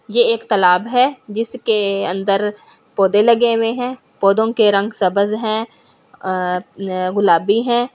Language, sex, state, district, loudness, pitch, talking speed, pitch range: Hindi, female, Delhi, New Delhi, -16 LUFS, 210 Hz, 135 wpm, 195-235 Hz